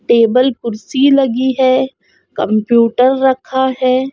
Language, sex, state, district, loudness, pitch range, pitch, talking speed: Hindi, female, Goa, North and South Goa, -13 LUFS, 235-265 Hz, 260 Hz, 100 wpm